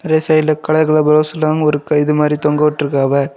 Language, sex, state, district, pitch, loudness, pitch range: Tamil, male, Tamil Nadu, Kanyakumari, 150 Hz, -14 LUFS, 150-155 Hz